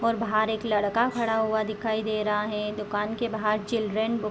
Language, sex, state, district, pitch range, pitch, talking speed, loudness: Hindi, female, Chhattisgarh, Korba, 210-225 Hz, 220 Hz, 225 wpm, -27 LUFS